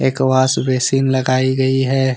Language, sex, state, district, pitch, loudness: Hindi, male, Jharkhand, Deoghar, 130 Hz, -16 LUFS